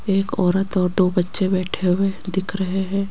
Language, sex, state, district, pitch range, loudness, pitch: Hindi, female, Rajasthan, Jaipur, 185-195 Hz, -21 LUFS, 190 Hz